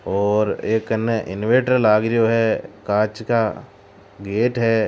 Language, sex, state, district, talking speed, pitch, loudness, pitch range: Marwari, male, Rajasthan, Churu, 135 wpm, 110 Hz, -19 LUFS, 100-115 Hz